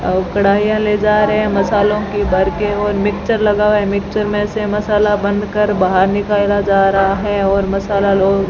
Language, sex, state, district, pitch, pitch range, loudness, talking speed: Hindi, female, Rajasthan, Bikaner, 205 Hz, 195-210 Hz, -15 LUFS, 200 wpm